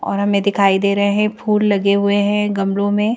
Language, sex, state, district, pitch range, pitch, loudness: Hindi, female, Madhya Pradesh, Bhopal, 200-210 Hz, 200 Hz, -16 LUFS